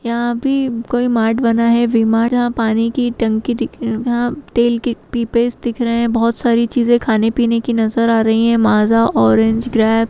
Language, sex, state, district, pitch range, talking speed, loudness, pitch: Kumaoni, female, Uttarakhand, Tehri Garhwal, 225-240 Hz, 200 wpm, -15 LUFS, 235 Hz